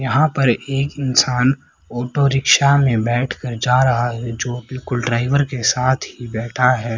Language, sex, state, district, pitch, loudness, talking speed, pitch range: Hindi, female, Haryana, Rohtak, 125 Hz, -18 LUFS, 170 wpm, 120-135 Hz